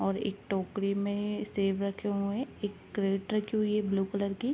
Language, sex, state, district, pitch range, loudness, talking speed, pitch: Hindi, female, Uttar Pradesh, Ghazipur, 195-210 Hz, -32 LUFS, 210 wpm, 200 Hz